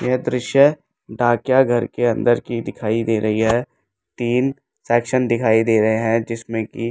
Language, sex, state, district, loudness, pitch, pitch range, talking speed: Hindi, male, Delhi, New Delhi, -19 LUFS, 120 Hz, 110-125 Hz, 175 wpm